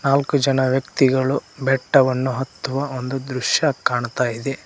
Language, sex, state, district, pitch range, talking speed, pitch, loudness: Kannada, male, Karnataka, Koppal, 130-135 Hz, 115 wpm, 130 Hz, -20 LUFS